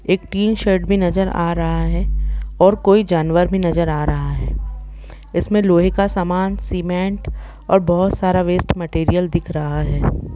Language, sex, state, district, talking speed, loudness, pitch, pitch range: Hindi, female, Jharkhand, Jamtara, 170 wpm, -18 LUFS, 180 Hz, 165-190 Hz